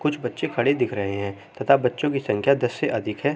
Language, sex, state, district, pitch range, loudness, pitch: Hindi, male, Uttar Pradesh, Jalaun, 105-140 Hz, -23 LUFS, 125 Hz